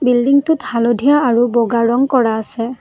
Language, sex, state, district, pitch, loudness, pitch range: Assamese, female, Assam, Kamrup Metropolitan, 245 Hz, -14 LUFS, 235-265 Hz